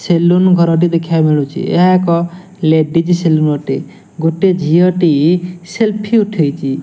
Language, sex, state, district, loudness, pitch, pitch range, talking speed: Odia, male, Odisha, Nuapada, -13 LUFS, 170 Hz, 160-180 Hz, 125 wpm